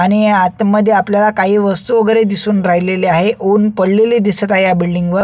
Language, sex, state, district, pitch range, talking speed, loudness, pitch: Marathi, male, Maharashtra, Solapur, 185-215 Hz, 195 wpm, -12 LUFS, 205 Hz